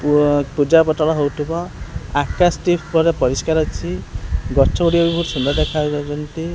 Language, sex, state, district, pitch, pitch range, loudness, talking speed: Odia, male, Odisha, Khordha, 150 Hz, 140-165 Hz, -18 LUFS, 135 wpm